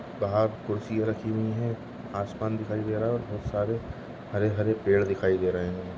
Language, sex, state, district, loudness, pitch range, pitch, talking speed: Hindi, male, Goa, North and South Goa, -29 LUFS, 100-110 Hz, 110 Hz, 180 wpm